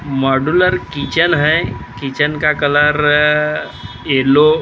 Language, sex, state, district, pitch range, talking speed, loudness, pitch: Hindi, male, Maharashtra, Gondia, 135-150 Hz, 115 wpm, -14 LUFS, 145 Hz